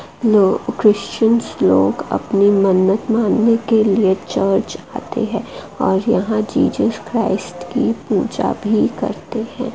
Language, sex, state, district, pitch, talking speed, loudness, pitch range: Hindi, female, West Bengal, Dakshin Dinajpur, 220 Hz, 125 wpm, -17 LUFS, 195-230 Hz